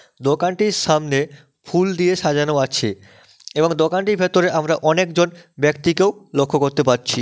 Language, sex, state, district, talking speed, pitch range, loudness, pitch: Bengali, male, West Bengal, Malda, 125 wpm, 140-180 Hz, -18 LUFS, 155 Hz